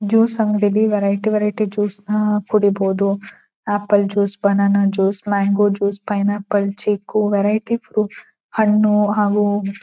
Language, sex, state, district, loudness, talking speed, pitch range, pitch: Kannada, female, Karnataka, Mysore, -18 LUFS, 110 wpm, 200-210 Hz, 205 Hz